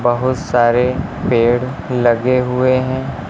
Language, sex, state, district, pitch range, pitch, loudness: Hindi, male, Uttar Pradesh, Lucknow, 120-130 Hz, 125 Hz, -16 LUFS